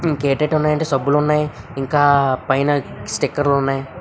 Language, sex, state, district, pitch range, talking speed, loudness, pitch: Telugu, male, Andhra Pradesh, Visakhapatnam, 135-150 Hz, 330 wpm, -18 LUFS, 145 Hz